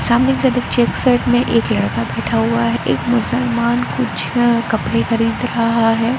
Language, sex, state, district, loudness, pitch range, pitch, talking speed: Hindi, female, Arunachal Pradesh, Lower Dibang Valley, -16 LUFS, 225-240 Hz, 235 Hz, 155 wpm